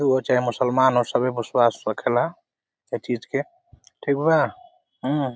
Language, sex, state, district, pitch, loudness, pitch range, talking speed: Bhojpuri, male, Uttar Pradesh, Deoria, 130 Hz, -23 LUFS, 125-150 Hz, 155 wpm